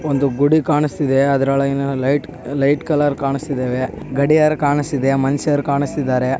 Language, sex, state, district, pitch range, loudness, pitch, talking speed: Kannada, male, Karnataka, Bellary, 135-145 Hz, -17 LUFS, 140 Hz, 110 wpm